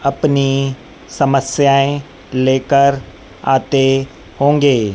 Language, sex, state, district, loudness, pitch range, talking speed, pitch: Hindi, female, Madhya Pradesh, Dhar, -15 LUFS, 130-140 Hz, 60 wpm, 135 Hz